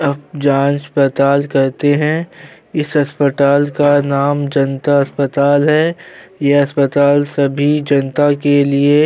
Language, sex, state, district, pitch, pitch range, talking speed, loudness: Hindi, male, Uttar Pradesh, Jyotiba Phule Nagar, 145 Hz, 140-145 Hz, 125 wpm, -14 LUFS